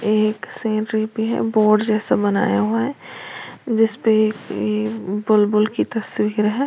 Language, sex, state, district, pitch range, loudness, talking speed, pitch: Hindi, female, Uttar Pradesh, Lalitpur, 210-225 Hz, -18 LUFS, 145 wpm, 215 Hz